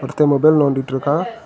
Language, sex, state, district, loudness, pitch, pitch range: Tamil, male, Tamil Nadu, Kanyakumari, -16 LUFS, 145 Hz, 135-155 Hz